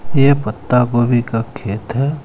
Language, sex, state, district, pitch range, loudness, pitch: Hindi, male, Jharkhand, Ranchi, 115-140 Hz, -16 LUFS, 120 Hz